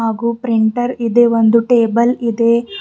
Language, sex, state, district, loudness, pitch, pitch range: Kannada, female, Karnataka, Bidar, -14 LUFS, 235 Hz, 230-240 Hz